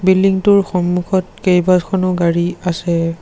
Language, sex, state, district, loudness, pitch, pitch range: Assamese, male, Assam, Sonitpur, -15 LUFS, 180 Hz, 175-190 Hz